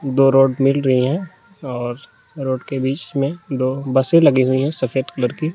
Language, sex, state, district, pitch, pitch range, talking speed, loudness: Hindi, male, Jharkhand, Garhwa, 135 Hz, 130-140 Hz, 195 wpm, -18 LUFS